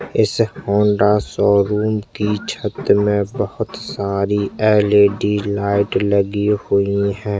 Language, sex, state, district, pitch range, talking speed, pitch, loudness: Hindi, male, Chhattisgarh, Jashpur, 100-105 Hz, 105 wpm, 100 Hz, -17 LUFS